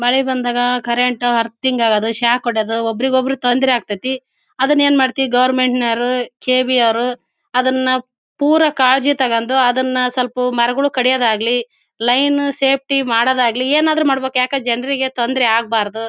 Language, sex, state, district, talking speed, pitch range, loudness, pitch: Kannada, female, Karnataka, Bellary, 130 wpm, 240-265 Hz, -15 LUFS, 255 Hz